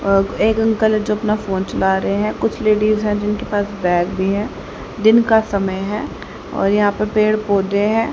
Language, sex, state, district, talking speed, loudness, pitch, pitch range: Hindi, female, Haryana, Charkhi Dadri, 200 wpm, -17 LUFS, 210 Hz, 200-215 Hz